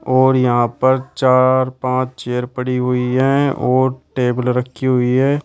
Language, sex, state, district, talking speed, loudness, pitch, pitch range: Hindi, male, Uttar Pradesh, Shamli, 155 wpm, -16 LUFS, 130 Hz, 125-130 Hz